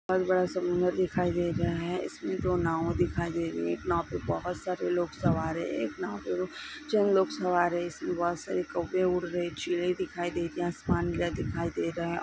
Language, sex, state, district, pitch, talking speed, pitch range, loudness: Hindi, female, Bihar, Darbhanga, 175 Hz, 225 wpm, 170-180 Hz, -30 LUFS